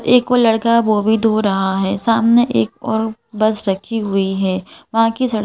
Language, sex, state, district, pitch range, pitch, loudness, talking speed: Hindi, female, Madhya Pradesh, Bhopal, 195-230 Hz, 220 Hz, -16 LUFS, 200 wpm